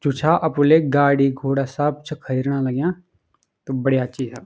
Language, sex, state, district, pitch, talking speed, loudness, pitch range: Garhwali, male, Uttarakhand, Uttarkashi, 140 Hz, 190 wpm, -20 LUFS, 135-150 Hz